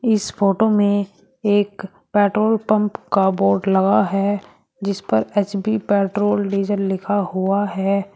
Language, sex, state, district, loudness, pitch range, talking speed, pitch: Hindi, female, Uttar Pradesh, Shamli, -19 LUFS, 195-205 Hz, 130 wpm, 200 Hz